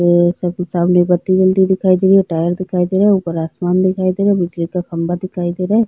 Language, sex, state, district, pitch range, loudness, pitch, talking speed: Hindi, female, Chhattisgarh, Jashpur, 175-185 Hz, -15 LUFS, 180 Hz, 265 wpm